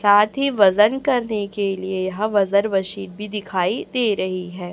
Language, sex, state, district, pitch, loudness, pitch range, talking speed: Hindi, female, Chhattisgarh, Raipur, 200 Hz, -20 LUFS, 190-215 Hz, 175 wpm